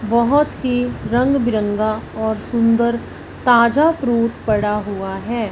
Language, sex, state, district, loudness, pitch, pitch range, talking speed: Hindi, female, Punjab, Fazilka, -18 LUFS, 235 Hz, 215-245 Hz, 120 wpm